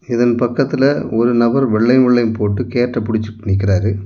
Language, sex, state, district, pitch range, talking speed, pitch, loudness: Tamil, male, Tamil Nadu, Kanyakumari, 110-125 Hz, 150 wpm, 120 Hz, -15 LUFS